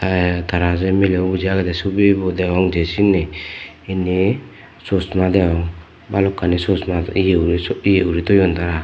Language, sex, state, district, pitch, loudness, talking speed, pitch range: Chakma, male, Tripura, Dhalai, 95 Hz, -17 LUFS, 140 wpm, 85-95 Hz